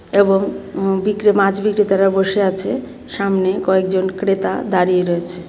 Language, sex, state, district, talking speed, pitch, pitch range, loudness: Bengali, female, Tripura, West Tripura, 130 wpm, 195 Hz, 190-200 Hz, -17 LUFS